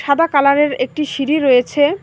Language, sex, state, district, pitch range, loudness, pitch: Bengali, female, West Bengal, Alipurduar, 275-300 Hz, -15 LUFS, 285 Hz